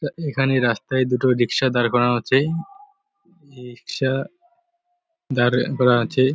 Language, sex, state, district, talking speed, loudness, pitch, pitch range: Bengali, male, West Bengal, Purulia, 130 wpm, -20 LUFS, 135 Hz, 125-180 Hz